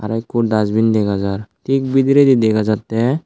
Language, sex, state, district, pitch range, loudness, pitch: Chakma, male, Tripura, Dhalai, 110-130 Hz, -16 LUFS, 115 Hz